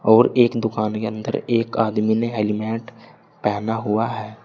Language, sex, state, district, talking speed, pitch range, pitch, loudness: Hindi, male, Uttar Pradesh, Saharanpur, 160 wpm, 105-115 Hz, 110 Hz, -21 LUFS